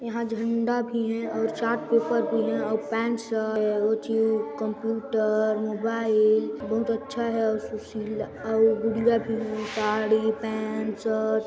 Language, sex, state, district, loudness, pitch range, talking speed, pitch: Hindi, male, Chhattisgarh, Sarguja, -26 LUFS, 215-230 Hz, 95 wpm, 220 Hz